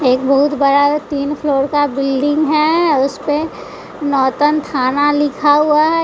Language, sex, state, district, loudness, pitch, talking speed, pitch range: Hindi, female, Bihar, West Champaran, -14 LUFS, 290 Hz, 140 wpm, 275-300 Hz